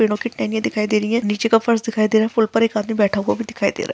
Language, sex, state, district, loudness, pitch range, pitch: Hindi, female, Bihar, Kishanganj, -19 LUFS, 210-225 Hz, 220 Hz